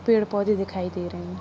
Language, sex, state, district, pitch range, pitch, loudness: Hindi, female, Jharkhand, Sahebganj, 175-210 Hz, 195 Hz, -25 LUFS